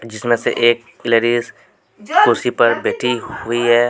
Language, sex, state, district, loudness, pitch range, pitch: Hindi, male, Jharkhand, Deoghar, -16 LUFS, 115-120 Hz, 120 Hz